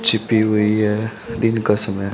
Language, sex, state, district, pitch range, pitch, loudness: Hindi, male, Haryana, Charkhi Dadri, 105-110 Hz, 105 Hz, -18 LUFS